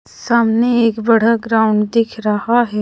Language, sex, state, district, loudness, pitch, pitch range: Hindi, female, Odisha, Khordha, -15 LUFS, 230 Hz, 220-235 Hz